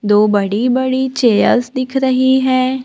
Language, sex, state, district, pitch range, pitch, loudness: Hindi, female, Maharashtra, Gondia, 220-260 Hz, 255 Hz, -14 LUFS